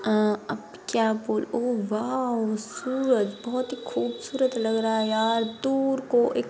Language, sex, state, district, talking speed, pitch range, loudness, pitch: Hindi, female, Bihar, Bhagalpur, 150 wpm, 215-255 Hz, -26 LUFS, 230 Hz